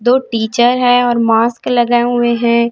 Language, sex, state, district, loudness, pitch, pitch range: Hindi, female, Chhattisgarh, Raipur, -13 LUFS, 240 Hz, 235-245 Hz